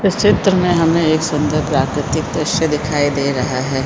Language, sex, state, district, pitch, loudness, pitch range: Hindi, female, Chhattisgarh, Korba, 150 Hz, -16 LUFS, 140-165 Hz